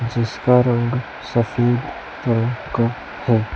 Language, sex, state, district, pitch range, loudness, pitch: Hindi, male, Chhattisgarh, Raipur, 115-125 Hz, -20 LUFS, 120 Hz